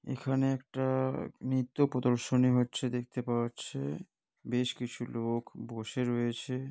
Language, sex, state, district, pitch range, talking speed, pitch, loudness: Bengali, male, West Bengal, Kolkata, 120-130 Hz, 115 wpm, 125 Hz, -33 LUFS